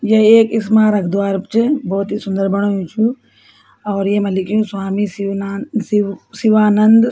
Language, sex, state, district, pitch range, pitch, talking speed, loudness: Garhwali, female, Uttarakhand, Tehri Garhwal, 195-220 Hz, 205 Hz, 150 wpm, -15 LUFS